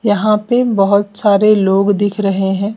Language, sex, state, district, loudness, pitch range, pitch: Hindi, female, Bihar, West Champaran, -13 LUFS, 200-210 Hz, 205 Hz